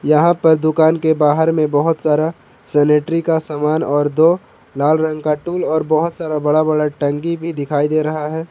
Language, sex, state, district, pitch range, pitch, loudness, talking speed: Hindi, male, Jharkhand, Palamu, 150-160 Hz, 155 Hz, -16 LUFS, 195 wpm